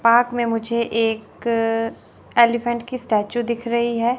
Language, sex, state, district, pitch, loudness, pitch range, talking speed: Hindi, female, Chandigarh, Chandigarh, 235 Hz, -21 LUFS, 225-240 Hz, 160 wpm